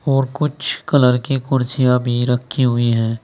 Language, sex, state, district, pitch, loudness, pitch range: Hindi, male, Uttar Pradesh, Saharanpur, 125 Hz, -17 LUFS, 120-135 Hz